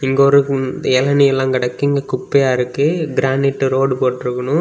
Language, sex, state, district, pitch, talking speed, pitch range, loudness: Tamil, male, Tamil Nadu, Kanyakumari, 135 Hz, 155 wpm, 130-140 Hz, -16 LUFS